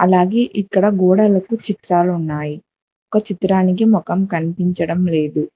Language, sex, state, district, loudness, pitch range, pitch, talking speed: Telugu, female, Telangana, Hyderabad, -17 LUFS, 170-205 Hz, 185 Hz, 110 wpm